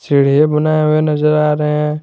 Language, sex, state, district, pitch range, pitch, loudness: Hindi, male, Jharkhand, Garhwa, 150-155 Hz, 150 Hz, -13 LUFS